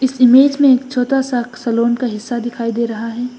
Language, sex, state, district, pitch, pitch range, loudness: Hindi, female, Assam, Hailakandi, 245 Hz, 235-260 Hz, -15 LUFS